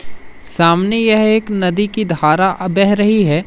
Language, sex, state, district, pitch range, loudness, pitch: Hindi, male, Madhya Pradesh, Umaria, 180-215 Hz, -14 LUFS, 195 Hz